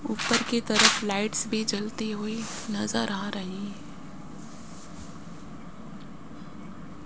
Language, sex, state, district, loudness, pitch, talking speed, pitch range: Hindi, male, Rajasthan, Jaipur, -26 LUFS, 210 Hz, 85 wpm, 200-225 Hz